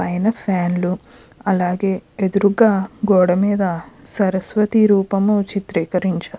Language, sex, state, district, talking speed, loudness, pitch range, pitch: Telugu, female, Andhra Pradesh, Krishna, 95 wpm, -18 LUFS, 180-205 Hz, 195 Hz